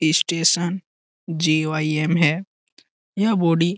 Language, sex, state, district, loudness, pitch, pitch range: Hindi, male, Uttar Pradesh, Etah, -20 LUFS, 165 Hz, 155-175 Hz